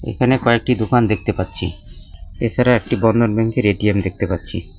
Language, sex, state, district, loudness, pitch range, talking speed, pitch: Bengali, male, West Bengal, Cooch Behar, -17 LUFS, 95-120 Hz, 150 wpm, 110 Hz